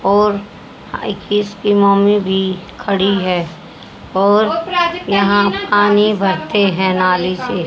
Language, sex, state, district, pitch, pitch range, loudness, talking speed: Hindi, female, Haryana, Jhajjar, 200 Hz, 190-205 Hz, -15 LUFS, 115 wpm